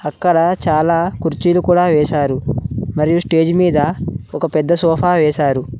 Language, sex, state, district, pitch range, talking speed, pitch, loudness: Telugu, male, Telangana, Mahabubabad, 145-170 Hz, 125 wpm, 160 Hz, -15 LUFS